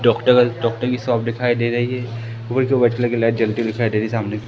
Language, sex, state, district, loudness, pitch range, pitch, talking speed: Hindi, male, Madhya Pradesh, Katni, -19 LUFS, 115-120 Hz, 120 Hz, 295 wpm